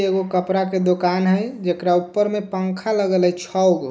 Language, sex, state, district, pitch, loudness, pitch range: Hindi, male, Bihar, Darbhanga, 185 Hz, -20 LUFS, 180-195 Hz